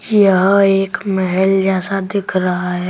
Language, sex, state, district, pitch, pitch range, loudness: Hindi, female, Delhi, New Delhi, 195 Hz, 185-195 Hz, -15 LUFS